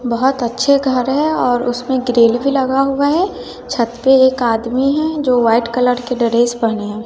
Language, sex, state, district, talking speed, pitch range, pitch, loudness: Hindi, female, Bihar, West Champaran, 195 wpm, 235-270 Hz, 250 Hz, -15 LUFS